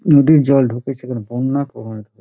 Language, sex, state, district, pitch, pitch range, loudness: Bengali, male, West Bengal, Dakshin Dinajpur, 130 Hz, 120-140 Hz, -16 LUFS